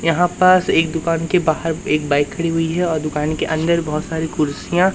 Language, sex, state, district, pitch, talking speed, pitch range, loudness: Hindi, male, Madhya Pradesh, Umaria, 165 Hz, 220 wpm, 155-170 Hz, -18 LUFS